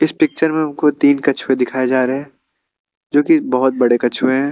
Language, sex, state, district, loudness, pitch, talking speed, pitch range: Hindi, male, Bihar, Kaimur, -16 LUFS, 135 Hz, 185 wpm, 130-150 Hz